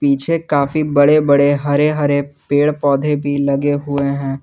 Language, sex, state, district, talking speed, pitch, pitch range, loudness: Hindi, male, Jharkhand, Garhwa, 160 wpm, 145 Hz, 140-145 Hz, -15 LUFS